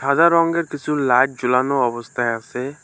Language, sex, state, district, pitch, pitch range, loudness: Bengali, male, West Bengal, Alipurduar, 135 Hz, 125-150 Hz, -19 LUFS